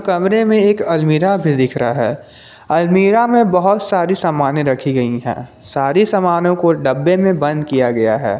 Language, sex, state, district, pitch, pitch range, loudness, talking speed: Hindi, male, Jharkhand, Garhwa, 165 Hz, 130-190 Hz, -14 LUFS, 180 wpm